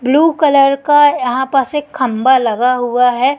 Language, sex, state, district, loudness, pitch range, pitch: Hindi, female, Madhya Pradesh, Katni, -12 LUFS, 250-290 Hz, 265 Hz